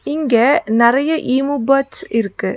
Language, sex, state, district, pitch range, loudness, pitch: Tamil, female, Tamil Nadu, Nilgiris, 235-285 Hz, -15 LUFS, 270 Hz